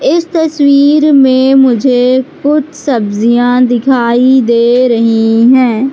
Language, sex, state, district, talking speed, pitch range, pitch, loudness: Hindi, female, Madhya Pradesh, Katni, 100 wpm, 240-280 Hz, 255 Hz, -8 LUFS